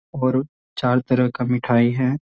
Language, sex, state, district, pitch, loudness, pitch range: Hindi, male, Bihar, Sitamarhi, 125 Hz, -20 LUFS, 125-130 Hz